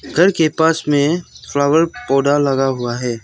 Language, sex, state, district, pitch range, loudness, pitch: Hindi, male, Arunachal Pradesh, Lower Dibang Valley, 135-160 Hz, -16 LUFS, 145 Hz